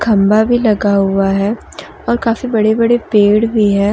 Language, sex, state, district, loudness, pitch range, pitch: Hindi, female, Jharkhand, Deoghar, -13 LUFS, 205-230 Hz, 215 Hz